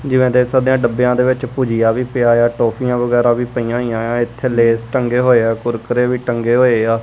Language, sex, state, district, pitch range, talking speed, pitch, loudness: Punjabi, female, Punjab, Kapurthala, 115-125 Hz, 220 wpm, 120 Hz, -15 LUFS